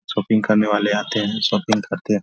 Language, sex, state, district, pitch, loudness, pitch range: Hindi, male, Bihar, Vaishali, 105 Hz, -19 LUFS, 105-110 Hz